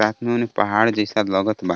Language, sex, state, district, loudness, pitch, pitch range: Bhojpuri, male, Jharkhand, Palamu, -20 LUFS, 105 Hz, 105-110 Hz